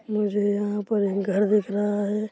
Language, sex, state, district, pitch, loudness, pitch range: Hindi, male, Chhattisgarh, Korba, 205 Hz, -24 LUFS, 205-210 Hz